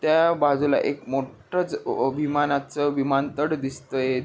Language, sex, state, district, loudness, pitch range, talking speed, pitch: Marathi, male, Maharashtra, Pune, -24 LUFS, 135-150 Hz, 125 wpm, 145 Hz